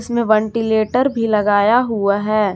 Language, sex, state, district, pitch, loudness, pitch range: Hindi, female, Jharkhand, Garhwa, 220 Hz, -16 LUFS, 210-235 Hz